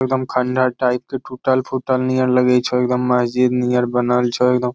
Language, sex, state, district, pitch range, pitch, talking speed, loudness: Angika, male, Bihar, Bhagalpur, 125-130 Hz, 125 Hz, 190 wpm, -18 LUFS